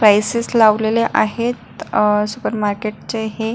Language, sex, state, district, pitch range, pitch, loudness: Marathi, female, Maharashtra, Pune, 210-230 Hz, 220 Hz, -17 LUFS